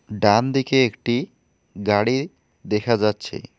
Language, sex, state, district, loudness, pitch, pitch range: Bengali, male, West Bengal, Alipurduar, -21 LUFS, 115 Hz, 105-130 Hz